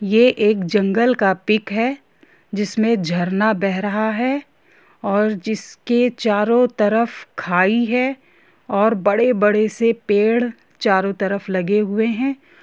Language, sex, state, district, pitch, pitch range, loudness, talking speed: Hindi, female, Jharkhand, Jamtara, 215 Hz, 205-235 Hz, -18 LUFS, 130 wpm